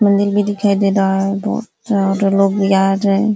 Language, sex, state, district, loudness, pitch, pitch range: Hindi, female, Uttar Pradesh, Ghazipur, -15 LUFS, 200 Hz, 195-205 Hz